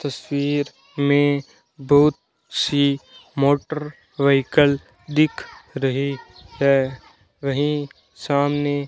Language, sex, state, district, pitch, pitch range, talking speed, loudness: Hindi, male, Rajasthan, Bikaner, 140 Hz, 140-145 Hz, 80 wpm, -21 LUFS